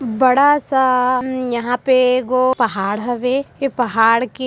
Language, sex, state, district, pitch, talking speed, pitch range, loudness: Chhattisgarhi, female, Chhattisgarh, Sarguja, 255 Hz, 150 wpm, 240-260 Hz, -16 LUFS